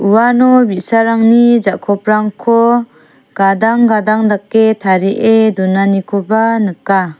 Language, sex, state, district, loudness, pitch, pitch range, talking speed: Garo, female, Meghalaya, South Garo Hills, -11 LUFS, 215 Hz, 195-230 Hz, 75 wpm